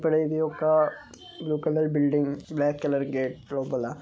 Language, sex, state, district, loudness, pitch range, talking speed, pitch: Telugu, male, Telangana, Karimnagar, -26 LUFS, 140-155 Hz, 165 wpm, 145 Hz